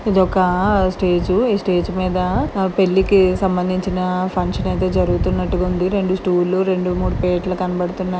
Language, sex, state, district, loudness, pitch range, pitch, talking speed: Telugu, female, Telangana, Karimnagar, -18 LUFS, 180-190 Hz, 185 Hz, 160 wpm